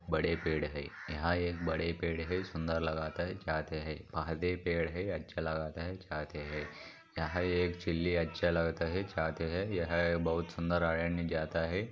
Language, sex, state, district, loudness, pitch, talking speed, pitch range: Hindi, male, Maharashtra, Sindhudurg, -35 LUFS, 85 Hz, 155 wpm, 80-85 Hz